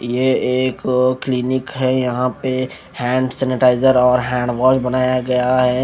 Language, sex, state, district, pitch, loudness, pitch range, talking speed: Hindi, male, Haryana, Jhajjar, 130 Hz, -17 LUFS, 125-130 Hz, 145 wpm